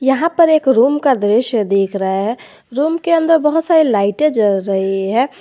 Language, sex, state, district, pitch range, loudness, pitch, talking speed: Hindi, male, Jharkhand, Garhwa, 205-315 Hz, -14 LUFS, 255 Hz, 200 wpm